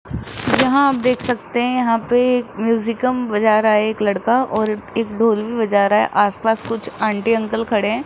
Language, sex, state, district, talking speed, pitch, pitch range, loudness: Hindi, female, Rajasthan, Jaipur, 210 wpm, 225 Hz, 215-245 Hz, -18 LUFS